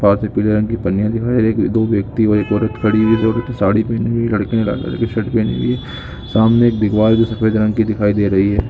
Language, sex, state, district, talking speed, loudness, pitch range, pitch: Hindi, male, Andhra Pradesh, Guntur, 305 wpm, -16 LUFS, 105-115 Hz, 110 Hz